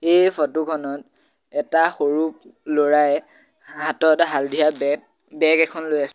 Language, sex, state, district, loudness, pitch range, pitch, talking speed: Assamese, male, Assam, Sonitpur, -20 LUFS, 145-160 Hz, 155 Hz, 125 wpm